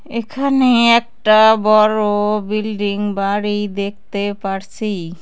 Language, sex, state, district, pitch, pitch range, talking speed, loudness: Bengali, female, West Bengal, Cooch Behar, 210 Hz, 200-220 Hz, 90 wpm, -16 LUFS